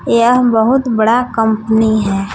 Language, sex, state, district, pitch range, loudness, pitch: Hindi, female, Jharkhand, Palamu, 220-240 Hz, -12 LUFS, 225 Hz